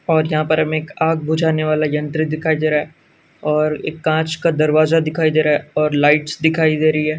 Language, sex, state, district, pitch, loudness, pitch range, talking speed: Hindi, male, Karnataka, Gulbarga, 155 Hz, -17 LUFS, 155-160 Hz, 235 wpm